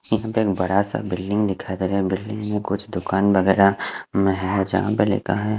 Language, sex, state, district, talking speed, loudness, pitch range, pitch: Hindi, male, Punjab, Fazilka, 225 wpm, -21 LUFS, 95-105 Hz, 100 Hz